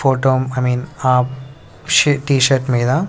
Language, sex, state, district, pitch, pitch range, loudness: Telugu, male, Andhra Pradesh, Sri Satya Sai, 130 Hz, 125-135 Hz, -16 LUFS